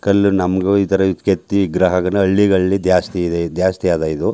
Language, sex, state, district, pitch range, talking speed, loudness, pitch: Kannada, male, Karnataka, Chamarajanagar, 90-100 Hz, 140 wpm, -16 LUFS, 95 Hz